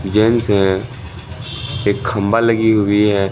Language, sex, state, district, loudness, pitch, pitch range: Hindi, male, Bihar, Katihar, -16 LUFS, 105 Hz, 100-115 Hz